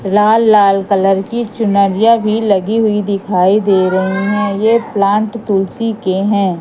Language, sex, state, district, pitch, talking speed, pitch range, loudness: Hindi, female, Madhya Pradesh, Katni, 205 Hz, 145 wpm, 195-220 Hz, -13 LUFS